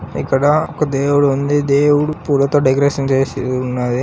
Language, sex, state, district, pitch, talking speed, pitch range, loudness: Telugu, male, Telangana, Karimnagar, 140 Hz, 135 wpm, 135-145 Hz, -15 LUFS